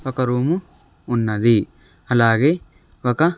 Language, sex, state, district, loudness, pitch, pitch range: Telugu, male, Andhra Pradesh, Sri Satya Sai, -19 LUFS, 125 Hz, 115-155 Hz